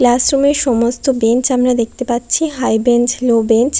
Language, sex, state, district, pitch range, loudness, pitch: Bengali, female, West Bengal, Kolkata, 235-260 Hz, -14 LUFS, 245 Hz